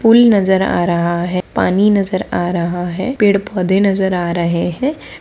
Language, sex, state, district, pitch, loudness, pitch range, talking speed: Hindi, female, Bihar, Bhagalpur, 185 Hz, -15 LUFS, 175-200 Hz, 175 wpm